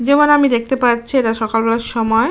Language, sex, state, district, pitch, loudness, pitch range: Bengali, female, West Bengal, Jalpaiguri, 235 Hz, -15 LUFS, 225-265 Hz